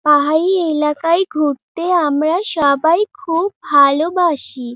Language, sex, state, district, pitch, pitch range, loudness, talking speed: Bengali, female, West Bengal, Dakshin Dinajpur, 320 Hz, 295-350 Hz, -15 LUFS, 90 wpm